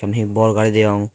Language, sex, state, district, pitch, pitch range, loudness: Chakma, male, Tripura, Dhalai, 110 Hz, 105-110 Hz, -15 LUFS